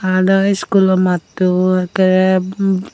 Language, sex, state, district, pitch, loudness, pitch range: Chakma, female, Tripura, Unakoti, 185 Hz, -14 LUFS, 185-195 Hz